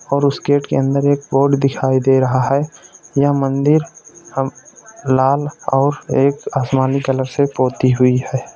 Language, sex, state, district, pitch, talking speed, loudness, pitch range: Hindi, male, Uttar Pradesh, Etah, 135 Hz, 160 wpm, -16 LUFS, 130-145 Hz